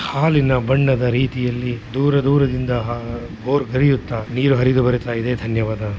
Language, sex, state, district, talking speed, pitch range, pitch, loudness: Kannada, male, Karnataka, Shimoga, 110 wpm, 120-135 Hz, 125 Hz, -19 LUFS